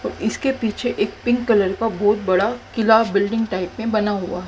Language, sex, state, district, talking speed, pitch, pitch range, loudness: Hindi, female, Haryana, Charkhi Dadri, 215 wpm, 215 Hz, 200-225 Hz, -20 LUFS